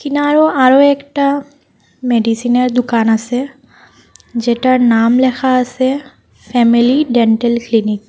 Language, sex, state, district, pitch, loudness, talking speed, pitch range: Bengali, female, Assam, Hailakandi, 250 Hz, -13 LUFS, 105 wpm, 235-270 Hz